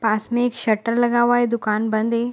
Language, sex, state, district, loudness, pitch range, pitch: Hindi, female, Bihar, Araria, -20 LUFS, 220-240 Hz, 235 Hz